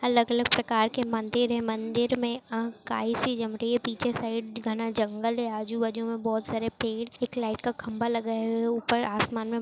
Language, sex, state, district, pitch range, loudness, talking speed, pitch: Hindi, female, Maharashtra, Dhule, 225-240 Hz, -28 LUFS, 205 wpm, 230 Hz